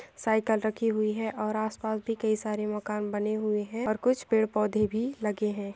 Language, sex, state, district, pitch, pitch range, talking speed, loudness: Hindi, female, Bihar, Vaishali, 215 Hz, 210-220 Hz, 220 wpm, -29 LUFS